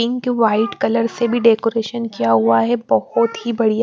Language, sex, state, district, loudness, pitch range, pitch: Hindi, female, Chandigarh, Chandigarh, -17 LUFS, 220-235 Hz, 230 Hz